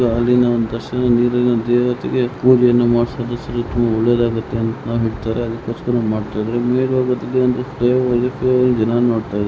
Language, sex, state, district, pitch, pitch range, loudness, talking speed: Kannada, male, Karnataka, Mysore, 120 Hz, 115-125 Hz, -17 LUFS, 95 wpm